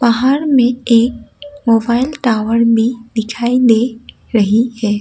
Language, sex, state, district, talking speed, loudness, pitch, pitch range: Hindi, female, Assam, Kamrup Metropolitan, 120 wpm, -14 LUFS, 235 Hz, 230-250 Hz